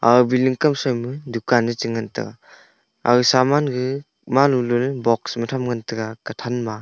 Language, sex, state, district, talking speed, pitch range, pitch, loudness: Wancho, male, Arunachal Pradesh, Longding, 165 wpm, 115-130 Hz, 125 Hz, -20 LUFS